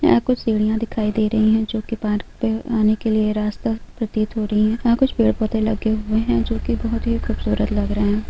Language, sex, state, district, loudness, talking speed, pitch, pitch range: Hindi, female, Bihar, Gopalganj, -20 LUFS, 240 wpm, 220 Hz, 215-225 Hz